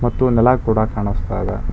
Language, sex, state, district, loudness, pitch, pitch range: Kannada, male, Karnataka, Bangalore, -18 LUFS, 110 Hz, 100-120 Hz